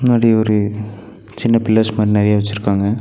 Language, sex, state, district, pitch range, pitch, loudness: Tamil, male, Tamil Nadu, Nilgiris, 105-110 Hz, 105 Hz, -15 LUFS